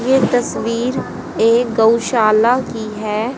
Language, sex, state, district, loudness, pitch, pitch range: Hindi, female, Haryana, Charkhi Dadri, -16 LUFS, 230 Hz, 220-245 Hz